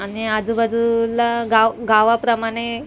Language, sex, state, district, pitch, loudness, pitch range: Marathi, female, Maharashtra, Mumbai Suburban, 230 Hz, -18 LUFS, 225-235 Hz